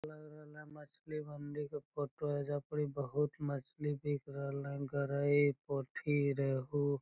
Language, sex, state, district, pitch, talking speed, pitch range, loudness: Magahi, male, Bihar, Lakhisarai, 145 Hz, 160 wpm, 140-150 Hz, -38 LUFS